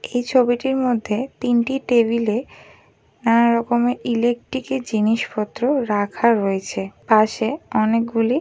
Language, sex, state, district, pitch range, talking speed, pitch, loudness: Bengali, female, West Bengal, Kolkata, 220-250 Hz, 100 wpm, 235 Hz, -20 LUFS